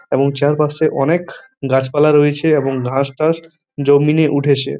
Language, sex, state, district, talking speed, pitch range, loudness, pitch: Bengali, male, West Bengal, Purulia, 115 wpm, 140-155 Hz, -15 LUFS, 145 Hz